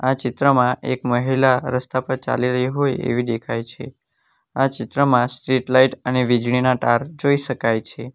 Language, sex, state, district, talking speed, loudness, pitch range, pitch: Gujarati, male, Gujarat, Valsad, 160 wpm, -20 LUFS, 120-130 Hz, 125 Hz